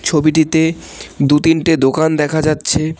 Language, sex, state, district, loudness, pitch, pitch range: Bengali, male, West Bengal, Cooch Behar, -14 LUFS, 155 Hz, 150-160 Hz